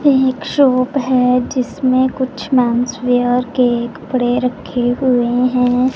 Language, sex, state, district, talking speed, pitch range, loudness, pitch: Hindi, female, Punjab, Pathankot, 120 wpm, 245-260 Hz, -15 LUFS, 250 Hz